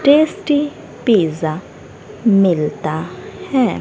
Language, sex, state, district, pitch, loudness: Hindi, female, Haryana, Rohtak, 205 Hz, -17 LUFS